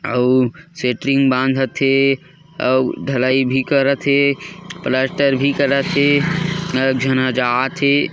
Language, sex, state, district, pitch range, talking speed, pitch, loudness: Chhattisgarhi, male, Chhattisgarh, Korba, 130-145 Hz, 140 wpm, 135 Hz, -17 LUFS